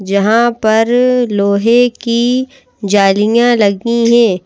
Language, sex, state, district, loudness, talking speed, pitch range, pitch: Hindi, female, Madhya Pradesh, Bhopal, -11 LUFS, 95 wpm, 205-240 Hz, 230 Hz